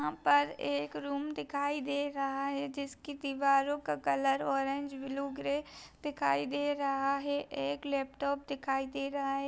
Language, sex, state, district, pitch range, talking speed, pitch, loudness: Hindi, female, Bihar, East Champaran, 265-280 Hz, 160 wpm, 275 Hz, -34 LUFS